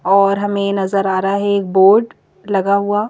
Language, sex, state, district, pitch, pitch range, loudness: Hindi, female, Madhya Pradesh, Bhopal, 200 Hz, 195-205 Hz, -15 LUFS